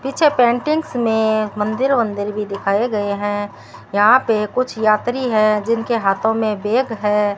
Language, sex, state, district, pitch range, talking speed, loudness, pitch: Hindi, female, Rajasthan, Bikaner, 210-245 Hz, 155 wpm, -18 LUFS, 220 Hz